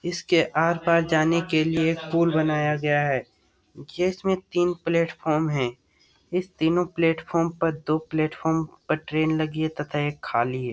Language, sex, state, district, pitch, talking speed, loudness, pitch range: Hindi, male, Bihar, Jamui, 160 Hz, 155 wpm, -24 LUFS, 155-170 Hz